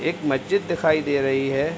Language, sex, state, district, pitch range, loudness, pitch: Hindi, male, Uttar Pradesh, Hamirpur, 135-165 Hz, -22 LUFS, 150 Hz